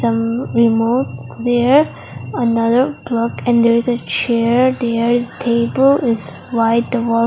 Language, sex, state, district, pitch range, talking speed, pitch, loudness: English, female, Mizoram, Aizawl, 230-245 Hz, 125 wpm, 235 Hz, -16 LUFS